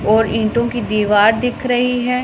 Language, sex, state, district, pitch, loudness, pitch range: Hindi, female, Punjab, Pathankot, 235 Hz, -16 LUFS, 215-245 Hz